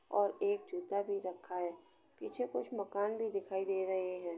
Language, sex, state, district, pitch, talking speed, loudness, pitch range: Hindi, female, Uttar Pradesh, Jalaun, 200 Hz, 190 wpm, -38 LUFS, 190-225 Hz